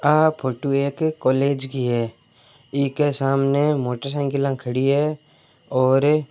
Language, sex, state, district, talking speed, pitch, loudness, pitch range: Marwari, male, Rajasthan, Churu, 115 wpm, 140 Hz, -21 LUFS, 130-150 Hz